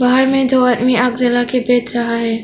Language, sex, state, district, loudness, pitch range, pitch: Hindi, female, Arunachal Pradesh, Longding, -14 LUFS, 240-250 Hz, 245 Hz